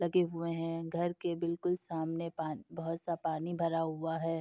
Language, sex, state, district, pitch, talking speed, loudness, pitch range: Hindi, female, Uttar Pradesh, Etah, 165 Hz, 190 wpm, -36 LUFS, 165-170 Hz